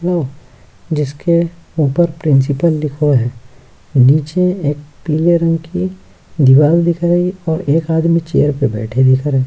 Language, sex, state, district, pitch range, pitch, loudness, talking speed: Hindi, male, Bihar, Kishanganj, 135-170 Hz, 150 Hz, -14 LUFS, 145 wpm